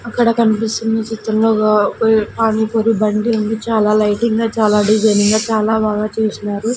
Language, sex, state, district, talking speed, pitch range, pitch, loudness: Telugu, female, Andhra Pradesh, Sri Satya Sai, 175 wpm, 215-225 Hz, 220 Hz, -15 LUFS